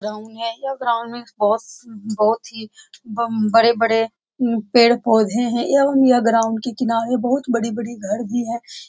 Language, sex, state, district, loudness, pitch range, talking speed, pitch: Hindi, female, Bihar, Saran, -19 LUFS, 225-240 Hz, 155 wpm, 230 Hz